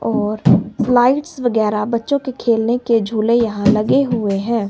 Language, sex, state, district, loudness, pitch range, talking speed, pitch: Hindi, male, Himachal Pradesh, Shimla, -16 LUFS, 215-245 Hz, 155 wpm, 230 Hz